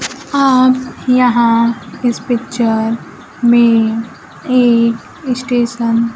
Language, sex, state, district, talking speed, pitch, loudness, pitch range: Hindi, female, Bihar, Kaimur, 80 wpm, 235 Hz, -13 LUFS, 230-250 Hz